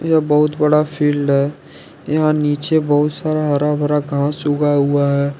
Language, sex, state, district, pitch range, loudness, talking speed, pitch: Hindi, male, Jharkhand, Ranchi, 145-150 Hz, -16 LUFS, 165 wpm, 150 Hz